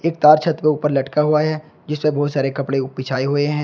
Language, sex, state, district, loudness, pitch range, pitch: Hindi, male, Uttar Pradesh, Shamli, -18 LUFS, 135-155 Hz, 150 Hz